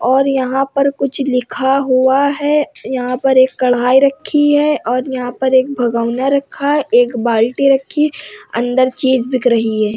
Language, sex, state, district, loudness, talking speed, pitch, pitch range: Hindi, female, Uttar Pradesh, Hamirpur, -14 LUFS, 180 wpm, 260 Hz, 245-275 Hz